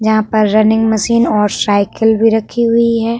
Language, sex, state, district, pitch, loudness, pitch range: Hindi, female, Uttar Pradesh, Budaun, 220 Hz, -12 LUFS, 215-230 Hz